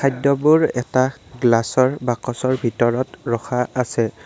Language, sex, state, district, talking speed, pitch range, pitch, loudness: Assamese, male, Assam, Kamrup Metropolitan, 100 wpm, 120-130 Hz, 125 Hz, -19 LUFS